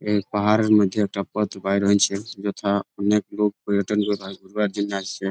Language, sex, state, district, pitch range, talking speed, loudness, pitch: Bengali, male, West Bengal, Jalpaiguri, 100-105 Hz, 190 wpm, -22 LUFS, 100 Hz